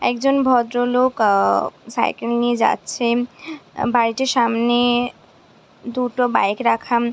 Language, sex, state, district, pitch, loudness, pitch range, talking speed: Bengali, female, West Bengal, Jhargram, 240 Hz, -19 LUFS, 235-250 Hz, 95 wpm